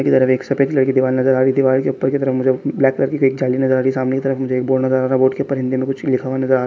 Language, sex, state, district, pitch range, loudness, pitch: Hindi, male, Chhattisgarh, Kabirdham, 130-135 Hz, -17 LUFS, 130 Hz